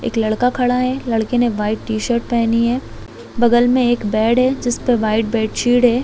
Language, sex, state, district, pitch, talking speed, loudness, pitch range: Hindi, female, Chhattisgarh, Balrampur, 240 Hz, 190 wpm, -17 LUFS, 225-245 Hz